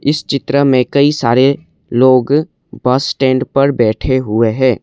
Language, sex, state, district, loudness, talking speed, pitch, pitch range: Hindi, male, Assam, Kamrup Metropolitan, -13 LUFS, 150 wpm, 130 Hz, 125-140 Hz